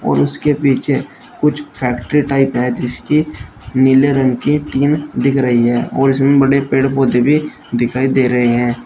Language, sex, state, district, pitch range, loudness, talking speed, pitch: Hindi, male, Uttar Pradesh, Shamli, 120-140 Hz, -14 LUFS, 170 wpm, 135 Hz